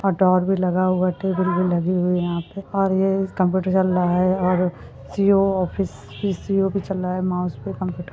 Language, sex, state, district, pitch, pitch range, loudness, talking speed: Hindi, female, Chhattisgarh, Balrampur, 185 Hz, 180-195 Hz, -21 LUFS, 230 wpm